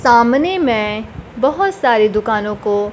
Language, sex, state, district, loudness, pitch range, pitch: Hindi, female, Bihar, Kaimur, -15 LUFS, 215-270 Hz, 230 Hz